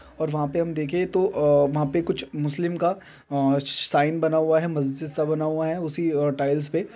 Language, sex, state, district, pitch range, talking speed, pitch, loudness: Hindi, male, Chhattisgarh, Balrampur, 145-170 Hz, 205 wpm, 155 Hz, -24 LUFS